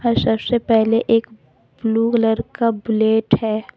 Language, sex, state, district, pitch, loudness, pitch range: Hindi, female, Jharkhand, Deoghar, 225 Hz, -18 LUFS, 220-230 Hz